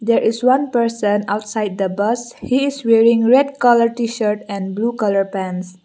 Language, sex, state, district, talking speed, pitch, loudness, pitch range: English, female, Mizoram, Aizawl, 175 wpm, 225 Hz, -17 LUFS, 205-240 Hz